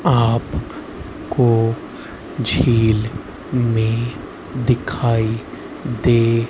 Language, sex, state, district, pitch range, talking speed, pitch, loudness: Hindi, male, Haryana, Rohtak, 115-120 Hz, 55 wpm, 115 Hz, -19 LUFS